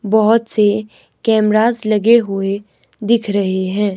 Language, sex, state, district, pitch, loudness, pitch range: Hindi, male, Himachal Pradesh, Shimla, 215 Hz, -15 LUFS, 200-220 Hz